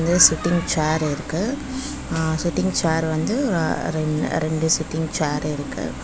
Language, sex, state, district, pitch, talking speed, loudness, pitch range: Tamil, female, Tamil Nadu, Chennai, 160 Hz, 120 wpm, -21 LUFS, 155-175 Hz